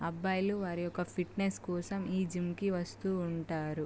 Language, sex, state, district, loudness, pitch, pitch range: Telugu, female, Andhra Pradesh, Guntur, -36 LUFS, 180 Hz, 175-190 Hz